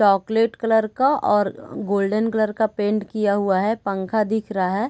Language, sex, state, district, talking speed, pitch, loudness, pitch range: Hindi, female, Bihar, Sitamarhi, 170 wpm, 215 Hz, -21 LUFS, 200-220 Hz